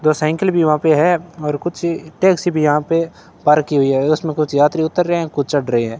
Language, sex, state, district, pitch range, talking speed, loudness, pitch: Hindi, male, Rajasthan, Bikaner, 150-170 Hz, 260 wpm, -16 LUFS, 155 Hz